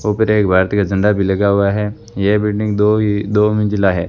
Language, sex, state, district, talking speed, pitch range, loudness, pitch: Hindi, male, Rajasthan, Bikaner, 235 wpm, 100-105 Hz, -15 LUFS, 105 Hz